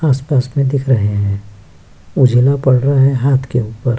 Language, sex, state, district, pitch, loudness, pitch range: Hindi, male, Bihar, Kishanganj, 130 Hz, -14 LUFS, 105-135 Hz